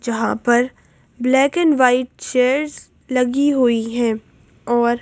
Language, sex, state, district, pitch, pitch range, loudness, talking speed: Hindi, female, Madhya Pradesh, Bhopal, 250 Hz, 240-265 Hz, -18 LUFS, 120 wpm